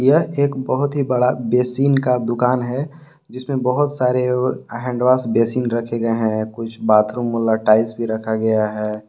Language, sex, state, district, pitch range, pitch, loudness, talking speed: Hindi, male, Jharkhand, Palamu, 115-130 Hz, 125 Hz, -18 LUFS, 170 wpm